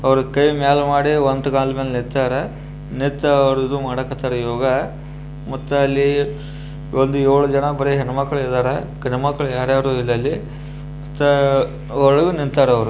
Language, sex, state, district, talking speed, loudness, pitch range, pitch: Kannada, male, Karnataka, Bijapur, 135 wpm, -18 LUFS, 135-145 Hz, 140 Hz